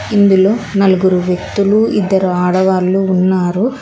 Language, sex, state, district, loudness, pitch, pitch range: Telugu, female, Telangana, Hyderabad, -13 LUFS, 190 Hz, 185-200 Hz